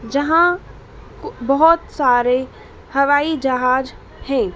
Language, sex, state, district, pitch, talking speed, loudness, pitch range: Hindi, female, Madhya Pradesh, Dhar, 275 Hz, 80 wpm, -17 LUFS, 255-305 Hz